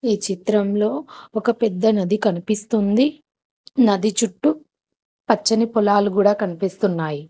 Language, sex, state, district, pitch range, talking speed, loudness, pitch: Telugu, female, Telangana, Hyderabad, 200-230 Hz, 100 wpm, -20 LUFS, 210 Hz